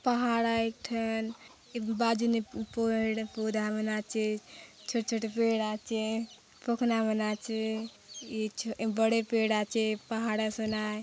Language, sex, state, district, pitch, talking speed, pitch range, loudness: Halbi, female, Chhattisgarh, Bastar, 225 Hz, 135 wpm, 220-230 Hz, -31 LUFS